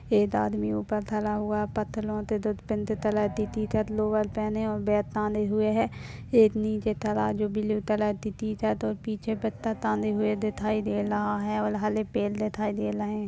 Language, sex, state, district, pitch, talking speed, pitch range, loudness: Hindi, male, Maharashtra, Solapur, 215 Hz, 180 wpm, 210-215 Hz, -28 LUFS